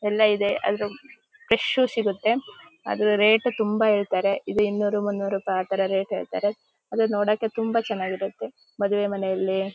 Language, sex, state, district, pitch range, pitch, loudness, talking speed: Kannada, female, Karnataka, Shimoga, 195-215 Hz, 205 Hz, -24 LUFS, 135 wpm